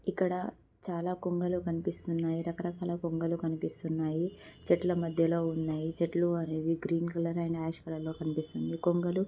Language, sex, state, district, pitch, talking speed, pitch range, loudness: Telugu, female, Andhra Pradesh, Guntur, 170 Hz, 125 wpm, 165-175 Hz, -33 LUFS